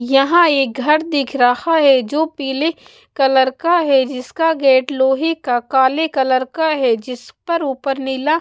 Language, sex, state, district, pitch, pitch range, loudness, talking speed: Hindi, female, Bihar, West Champaran, 275 Hz, 260-320 Hz, -16 LUFS, 165 wpm